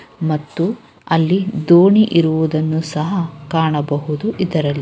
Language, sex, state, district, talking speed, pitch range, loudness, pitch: Kannada, female, Karnataka, Gulbarga, 85 wpm, 155-185 Hz, -16 LUFS, 160 Hz